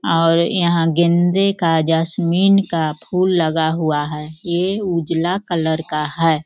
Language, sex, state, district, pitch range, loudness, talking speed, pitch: Hindi, female, Bihar, Sitamarhi, 160-175 Hz, -17 LUFS, 140 wpm, 165 Hz